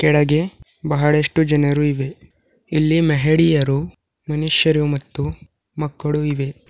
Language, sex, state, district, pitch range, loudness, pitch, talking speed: Kannada, female, Karnataka, Bidar, 145-155 Hz, -18 LUFS, 150 Hz, 90 wpm